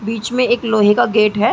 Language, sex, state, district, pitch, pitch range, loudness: Hindi, female, Uttar Pradesh, Gorakhpur, 225 Hz, 210-240 Hz, -15 LUFS